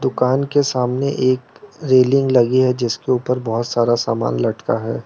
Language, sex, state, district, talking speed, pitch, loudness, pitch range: Hindi, male, Arunachal Pradesh, Lower Dibang Valley, 165 wpm, 125 Hz, -17 LUFS, 120-130 Hz